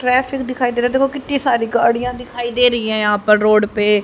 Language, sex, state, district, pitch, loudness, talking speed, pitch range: Hindi, male, Haryana, Rohtak, 240 Hz, -16 LUFS, 240 wpm, 215-255 Hz